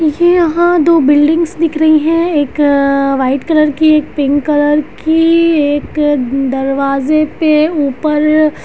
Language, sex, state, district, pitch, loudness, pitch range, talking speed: Hindi, female, Bihar, Muzaffarpur, 305 Hz, -11 LUFS, 285-320 Hz, 145 wpm